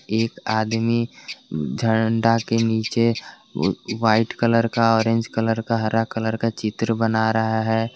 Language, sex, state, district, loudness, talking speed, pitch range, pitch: Hindi, male, Jharkhand, Garhwa, -21 LUFS, 135 wpm, 110-115 Hz, 115 Hz